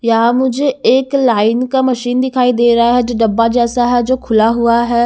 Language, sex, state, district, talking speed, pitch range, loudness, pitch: Hindi, female, Haryana, Charkhi Dadri, 215 wpm, 235-255 Hz, -13 LUFS, 240 Hz